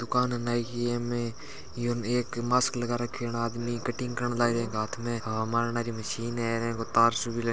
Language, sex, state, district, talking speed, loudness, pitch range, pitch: Marwari, male, Rajasthan, Churu, 190 wpm, -29 LUFS, 115-120 Hz, 120 Hz